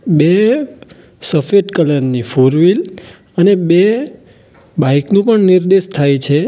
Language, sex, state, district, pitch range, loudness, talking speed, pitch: Gujarati, male, Gujarat, Valsad, 145-200 Hz, -12 LUFS, 120 wpm, 180 Hz